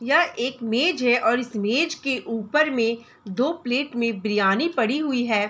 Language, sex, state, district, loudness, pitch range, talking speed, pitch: Hindi, female, Bihar, Vaishali, -22 LUFS, 225-270 Hz, 185 wpm, 245 Hz